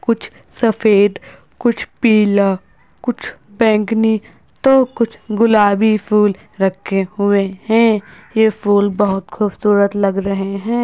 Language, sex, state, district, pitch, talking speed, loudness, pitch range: Hindi, female, Uttar Pradesh, Budaun, 210 Hz, 110 wpm, -15 LUFS, 200-225 Hz